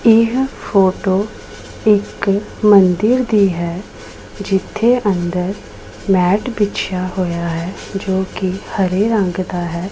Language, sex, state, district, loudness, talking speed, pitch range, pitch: Punjabi, female, Punjab, Pathankot, -16 LUFS, 110 wpm, 180-205 Hz, 190 Hz